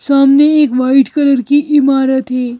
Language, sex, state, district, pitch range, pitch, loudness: Hindi, female, Madhya Pradesh, Bhopal, 265-290 Hz, 275 Hz, -11 LUFS